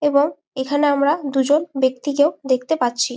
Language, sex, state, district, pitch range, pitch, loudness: Bengali, female, West Bengal, Malda, 260-295 Hz, 285 Hz, -19 LUFS